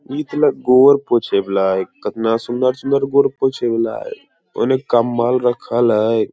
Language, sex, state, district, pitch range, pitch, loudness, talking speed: Hindi, male, Bihar, Lakhisarai, 115-135 Hz, 120 Hz, -16 LUFS, 150 wpm